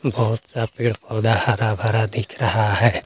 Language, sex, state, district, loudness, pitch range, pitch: Hindi, male, Jharkhand, Garhwa, -21 LUFS, 110-120 Hz, 115 Hz